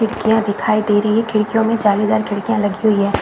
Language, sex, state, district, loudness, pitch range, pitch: Hindi, female, Jharkhand, Jamtara, -16 LUFS, 205-220 Hz, 215 Hz